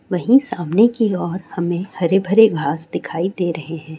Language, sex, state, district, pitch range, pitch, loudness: Hindi, female, Uttarakhand, Uttarkashi, 165-200 Hz, 180 Hz, -18 LUFS